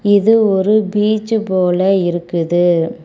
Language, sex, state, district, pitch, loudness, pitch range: Tamil, female, Tamil Nadu, Kanyakumari, 195 Hz, -14 LUFS, 175-210 Hz